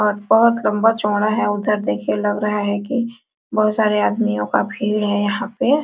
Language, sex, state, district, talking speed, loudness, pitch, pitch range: Hindi, female, Bihar, Araria, 185 wpm, -19 LUFS, 210 Hz, 205-220 Hz